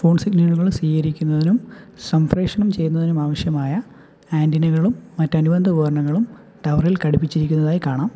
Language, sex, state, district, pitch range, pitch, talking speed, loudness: Malayalam, male, Kerala, Kollam, 155-185 Hz, 165 Hz, 90 wpm, -19 LUFS